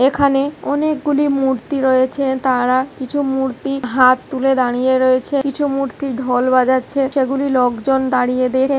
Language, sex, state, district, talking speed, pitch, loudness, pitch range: Bengali, female, West Bengal, Kolkata, 130 wpm, 265 Hz, -16 LUFS, 255-275 Hz